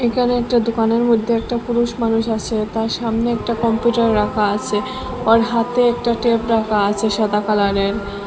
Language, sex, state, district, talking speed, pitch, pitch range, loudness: Bengali, female, Assam, Hailakandi, 160 wpm, 230 Hz, 215-235 Hz, -18 LUFS